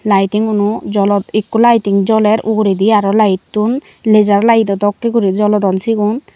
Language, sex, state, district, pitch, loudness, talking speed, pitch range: Chakma, female, Tripura, Unakoti, 210 Hz, -13 LUFS, 130 wpm, 200-220 Hz